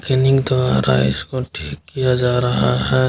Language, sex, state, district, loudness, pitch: Hindi, male, Bihar, Kishanganj, -17 LUFS, 105 Hz